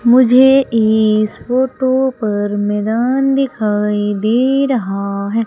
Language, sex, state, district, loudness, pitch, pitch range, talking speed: Hindi, female, Madhya Pradesh, Umaria, -14 LUFS, 230 Hz, 210-260 Hz, 100 wpm